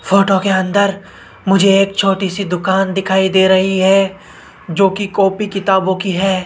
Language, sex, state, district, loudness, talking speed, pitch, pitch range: Hindi, male, Rajasthan, Jaipur, -14 LUFS, 160 wpm, 195 Hz, 190-195 Hz